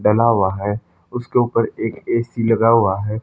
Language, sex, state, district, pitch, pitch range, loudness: Hindi, male, Haryana, Charkhi Dadri, 115 Hz, 105-115 Hz, -18 LUFS